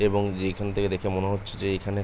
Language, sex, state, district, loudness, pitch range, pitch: Bengali, male, West Bengal, Jhargram, -28 LUFS, 95-100 Hz, 100 Hz